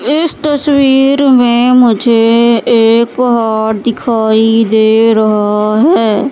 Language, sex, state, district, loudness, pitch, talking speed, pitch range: Hindi, female, Madhya Pradesh, Katni, -9 LUFS, 230 Hz, 95 wpm, 220-255 Hz